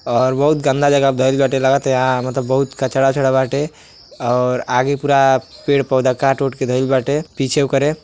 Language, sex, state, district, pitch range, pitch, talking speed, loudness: Bhojpuri, male, Uttar Pradesh, Deoria, 130-140 Hz, 135 Hz, 185 wpm, -16 LUFS